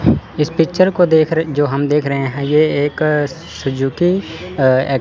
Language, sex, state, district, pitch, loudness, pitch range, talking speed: Hindi, male, Chandigarh, Chandigarh, 150 Hz, -16 LUFS, 135-160 Hz, 165 wpm